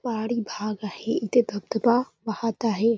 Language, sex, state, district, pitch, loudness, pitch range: Marathi, female, Maharashtra, Nagpur, 225 Hz, -26 LUFS, 215-235 Hz